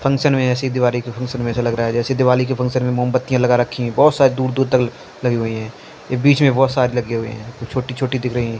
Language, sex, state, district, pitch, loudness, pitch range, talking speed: Hindi, male, Punjab, Fazilka, 125 Hz, -18 LUFS, 120-130 Hz, 285 wpm